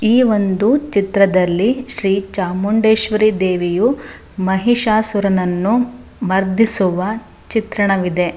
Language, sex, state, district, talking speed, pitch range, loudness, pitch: Kannada, female, Karnataka, Shimoga, 65 wpm, 190-225 Hz, -15 LUFS, 205 Hz